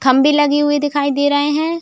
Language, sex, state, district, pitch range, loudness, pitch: Hindi, female, Uttar Pradesh, Jalaun, 285-295 Hz, -15 LUFS, 290 Hz